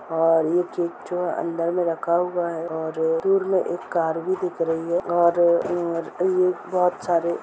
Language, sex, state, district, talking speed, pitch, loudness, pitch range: Hindi, female, Uttar Pradesh, Etah, 200 wpm, 170 Hz, -23 LUFS, 165-180 Hz